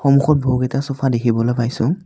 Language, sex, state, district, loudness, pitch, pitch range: Assamese, male, Assam, Kamrup Metropolitan, -18 LUFS, 135 Hz, 120-140 Hz